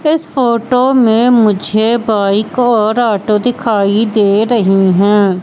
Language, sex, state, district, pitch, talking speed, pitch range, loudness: Hindi, female, Madhya Pradesh, Katni, 220 Hz, 120 wpm, 205-240 Hz, -11 LUFS